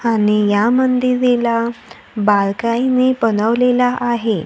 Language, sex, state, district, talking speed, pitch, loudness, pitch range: Marathi, female, Maharashtra, Gondia, 80 wpm, 235 Hz, -15 LUFS, 215-250 Hz